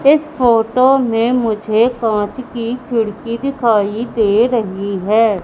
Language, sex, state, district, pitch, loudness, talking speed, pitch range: Hindi, female, Madhya Pradesh, Katni, 230 Hz, -15 LUFS, 120 wpm, 215-250 Hz